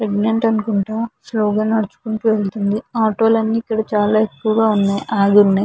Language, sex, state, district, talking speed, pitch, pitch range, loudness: Telugu, female, Andhra Pradesh, Visakhapatnam, 150 wpm, 215 Hz, 205-225 Hz, -17 LUFS